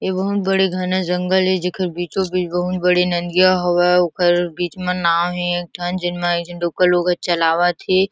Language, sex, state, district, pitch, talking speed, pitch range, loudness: Chhattisgarhi, female, Chhattisgarh, Kabirdham, 180 Hz, 200 wpm, 175-185 Hz, -18 LUFS